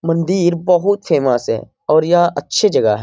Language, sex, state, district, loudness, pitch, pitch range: Hindi, male, Bihar, Jamui, -15 LUFS, 170 Hz, 145-180 Hz